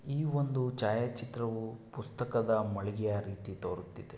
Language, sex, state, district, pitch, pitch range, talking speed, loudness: Kannada, male, Karnataka, Shimoga, 115 Hz, 105-125 Hz, 130 wpm, -35 LUFS